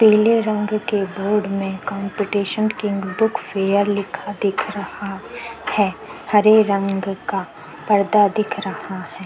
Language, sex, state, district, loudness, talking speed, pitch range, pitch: Hindi, female, Bihar, Vaishali, -20 LUFS, 130 wpm, 195-215 Hz, 205 Hz